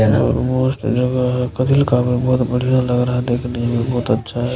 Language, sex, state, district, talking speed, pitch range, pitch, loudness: Maithili, male, Bihar, Supaul, 195 wpm, 120-130 Hz, 125 Hz, -17 LUFS